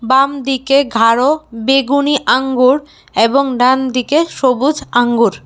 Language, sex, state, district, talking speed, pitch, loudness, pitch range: Bengali, female, Tripura, West Tripura, 100 wpm, 265 Hz, -13 LUFS, 250-280 Hz